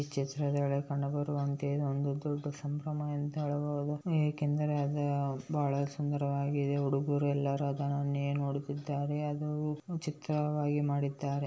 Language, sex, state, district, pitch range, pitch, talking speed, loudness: Kannada, male, Karnataka, Bellary, 140-150 Hz, 145 Hz, 115 wpm, -34 LUFS